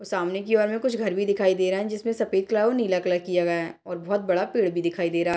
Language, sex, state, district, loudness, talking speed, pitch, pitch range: Hindi, female, Bihar, Darbhanga, -24 LUFS, 335 wpm, 190 Hz, 180-215 Hz